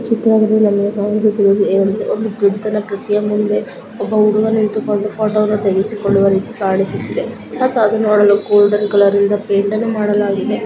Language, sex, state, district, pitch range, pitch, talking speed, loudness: Kannada, female, Karnataka, Gulbarga, 200-215 Hz, 210 Hz, 140 wpm, -15 LUFS